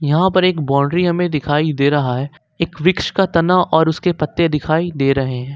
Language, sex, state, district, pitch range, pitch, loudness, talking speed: Hindi, male, Jharkhand, Ranchi, 145-175 Hz, 155 Hz, -16 LUFS, 215 wpm